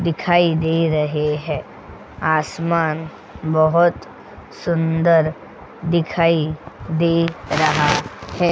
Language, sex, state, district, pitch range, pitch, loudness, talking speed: Hindi, female, Goa, North and South Goa, 155-170 Hz, 160 Hz, -19 LUFS, 75 wpm